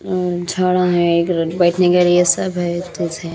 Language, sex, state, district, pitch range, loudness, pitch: Hindi, female, Haryana, Rohtak, 170-180 Hz, -16 LUFS, 175 Hz